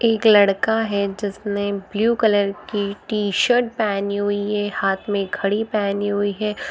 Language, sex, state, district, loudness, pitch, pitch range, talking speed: Hindi, female, Bihar, Araria, -20 LUFS, 205 Hz, 200-215 Hz, 170 wpm